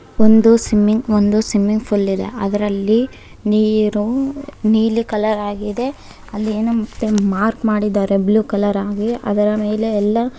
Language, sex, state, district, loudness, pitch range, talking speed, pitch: Kannada, male, Karnataka, Bellary, -17 LUFS, 210-225 Hz, 135 wpm, 215 Hz